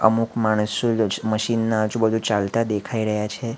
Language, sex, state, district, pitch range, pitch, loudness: Gujarati, male, Gujarat, Valsad, 105-115 Hz, 110 Hz, -22 LUFS